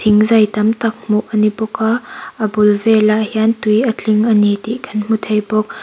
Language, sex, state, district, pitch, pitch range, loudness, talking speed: Mizo, female, Mizoram, Aizawl, 215 Hz, 215-220 Hz, -15 LUFS, 235 wpm